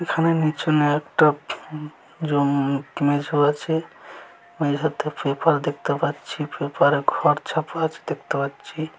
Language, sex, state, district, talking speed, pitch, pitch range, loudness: Bengali, male, West Bengal, Dakshin Dinajpur, 100 wpm, 150 Hz, 145-160 Hz, -22 LUFS